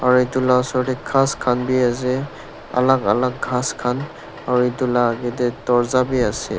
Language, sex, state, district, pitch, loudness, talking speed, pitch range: Nagamese, male, Nagaland, Dimapur, 125 Hz, -19 LUFS, 190 wpm, 125-130 Hz